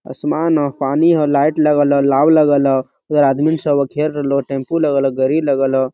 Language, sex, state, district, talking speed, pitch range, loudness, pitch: Hindi, male, Jharkhand, Sahebganj, 190 wpm, 135-155 Hz, -15 LUFS, 145 Hz